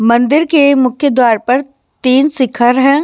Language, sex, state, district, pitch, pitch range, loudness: Hindi, female, Maharashtra, Washim, 260 Hz, 245-280 Hz, -11 LUFS